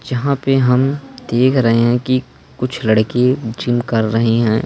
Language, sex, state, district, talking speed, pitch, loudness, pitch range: Hindi, male, Madhya Pradesh, Umaria, 165 wpm, 125 Hz, -16 LUFS, 115-130 Hz